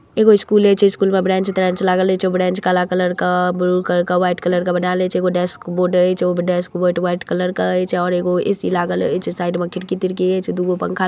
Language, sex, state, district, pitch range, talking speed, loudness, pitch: Maithili, female, Bihar, Darbhanga, 180-185 Hz, 260 wpm, -17 LUFS, 180 Hz